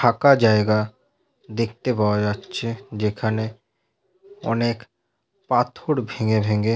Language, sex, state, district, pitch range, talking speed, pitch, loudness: Bengali, male, West Bengal, Purulia, 105-120 Hz, 95 wpm, 110 Hz, -22 LUFS